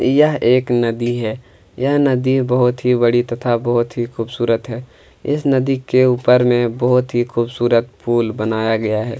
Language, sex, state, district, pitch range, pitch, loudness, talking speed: Hindi, male, Chhattisgarh, Kabirdham, 115-125 Hz, 120 Hz, -17 LUFS, 170 wpm